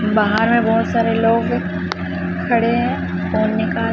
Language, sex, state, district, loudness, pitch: Hindi, female, Chhattisgarh, Raipur, -18 LUFS, 215 Hz